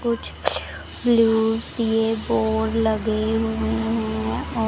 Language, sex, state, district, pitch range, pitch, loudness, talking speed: Hindi, female, Punjab, Pathankot, 220-225 Hz, 225 Hz, -22 LUFS, 90 wpm